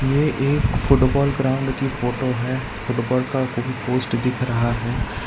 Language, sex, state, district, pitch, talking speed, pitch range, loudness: Hindi, male, Gujarat, Valsad, 125 Hz, 160 wpm, 120-135 Hz, -21 LUFS